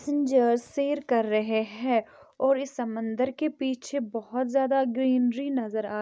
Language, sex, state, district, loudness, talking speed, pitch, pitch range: Hindi, female, Chhattisgarh, Bilaspur, -27 LUFS, 150 wpm, 255 Hz, 230-275 Hz